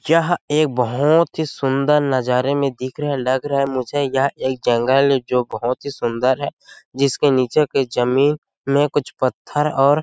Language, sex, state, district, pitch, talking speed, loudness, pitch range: Hindi, male, Chhattisgarh, Sarguja, 140 Hz, 175 wpm, -19 LUFS, 130-145 Hz